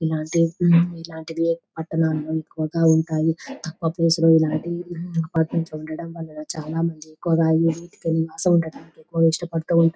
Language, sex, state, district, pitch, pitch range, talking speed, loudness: Telugu, female, Telangana, Nalgonda, 165 Hz, 160-165 Hz, 100 wpm, -22 LUFS